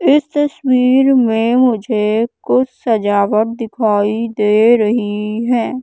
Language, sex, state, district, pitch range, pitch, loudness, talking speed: Hindi, female, Madhya Pradesh, Katni, 215-255 Hz, 230 Hz, -14 LUFS, 105 wpm